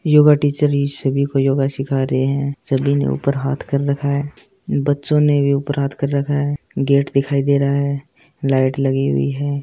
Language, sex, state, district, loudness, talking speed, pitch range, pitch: Hindi, female, Rajasthan, Churu, -18 LUFS, 205 wpm, 135-145 Hz, 140 Hz